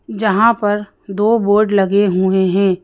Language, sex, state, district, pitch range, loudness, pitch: Hindi, female, Madhya Pradesh, Bhopal, 190-210 Hz, -14 LUFS, 205 Hz